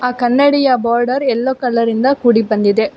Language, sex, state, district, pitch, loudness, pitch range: Kannada, female, Karnataka, Bangalore, 245 Hz, -14 LUFS, 230-260 Hz